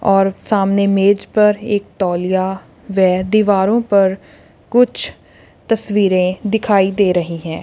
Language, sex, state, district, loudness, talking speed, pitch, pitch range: Hindi, female, Punjab, Kapurthala, -15 LUFS, 120 wpm, 195 Hz, 190-210 Hz